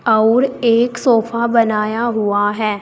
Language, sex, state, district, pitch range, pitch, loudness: Hindi, female, Uttar Pradesh, Saharanpur, 215-240 Hz, 230 Hz, -15 LUFS